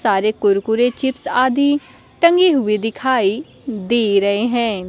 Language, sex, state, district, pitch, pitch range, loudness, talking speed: Hindi, female, Bihar, Kaimur, 235 Hz, 210-265 Hz, -17 LUFS, 120 wpm